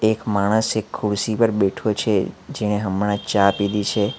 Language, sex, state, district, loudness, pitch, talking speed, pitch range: Gujarati, male, Gujarat, Valsad, -21 LUFS, 105 Hz, 170 wpm, 100-110 Hz